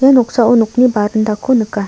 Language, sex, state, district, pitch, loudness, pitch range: Garo, female, Meghalaya, South Garo Hills, 230 Hz, -13 LUFS, 215-250 Hz